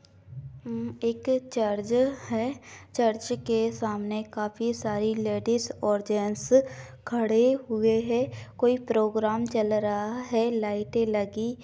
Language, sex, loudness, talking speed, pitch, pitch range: Maithili, female, -27 LUFS, 115 wpm, 220 Hz, 210-235 Hz